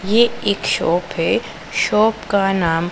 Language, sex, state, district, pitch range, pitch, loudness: Hindi, female, Punjab, Pathankot, 175-220 Hz, 200 Hz, -18 LUFS